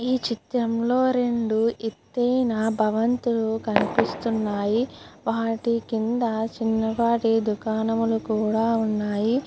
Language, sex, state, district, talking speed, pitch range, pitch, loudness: Telugu, female, Andhra Pradesh, Krishna, 75 wpm, 220-235 Hz, 225 Hz, -24 LUFS